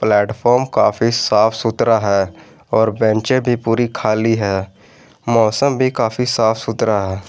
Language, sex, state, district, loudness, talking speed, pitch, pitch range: Hindi, male, Jharkhand, Garhwa, -16 LUFS, 125 wpm, 110 Hz, 105-120 Hz